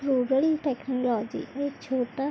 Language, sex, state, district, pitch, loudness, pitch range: Hindi, female, Chhattisgarh, Bilaspur, 270 Hz, -27 LUFS, 250-285 Hz